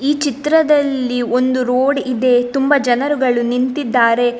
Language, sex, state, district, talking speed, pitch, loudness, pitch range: Kannada, female, Karnataka, Dakshina Kannada, 110 wpm, 255 Hz, -15 LUFS, 245-285 Hz